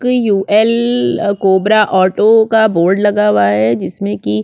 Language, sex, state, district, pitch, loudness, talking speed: Hindi, female, Chhattisgarh, Korba, 200 Hz, -12 LUFS, 150 wpm